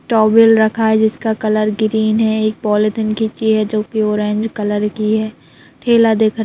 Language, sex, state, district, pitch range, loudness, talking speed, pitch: Hindi, female, Chhattisgarh, Raigarh, 215-220 Hz, -15 LUFS, 175 wpm, 220 Hz